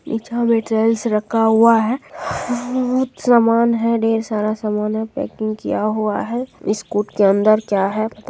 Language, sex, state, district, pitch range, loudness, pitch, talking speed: Hindi, female, Bihar, Jamui, 215-235 Hz, -18 LUFS, 225 Hz, 180 wpm